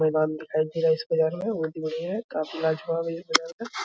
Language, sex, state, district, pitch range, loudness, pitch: Hindi, male, Bihar, Araria, 155-165 Hz, -27 LUFS, 160 Hz